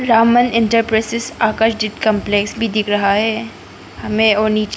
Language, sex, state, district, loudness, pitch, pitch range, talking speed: Hindi, female, Arunachal Pradesh, Papum Pare, -16 LUFS, 220 Hz, 215-230 Hz, 150 wpm